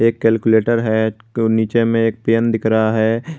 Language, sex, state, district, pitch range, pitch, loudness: Hindi, male, Jharkhand, Garhwa, 110-115 Hz, 115 Hz, -16 LUFS